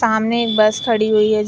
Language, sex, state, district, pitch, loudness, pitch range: Hindi, female, Uttar Pradesh, Varanasi, 220 Hz, -16 LUFS, 215-230 Hz